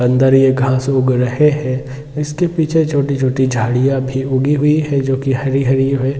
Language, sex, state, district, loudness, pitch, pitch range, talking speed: Hindi, male, Jharkhand, Jamtara, -15 LUFS, 135 Hz, 130-145 Hz, 195 wpm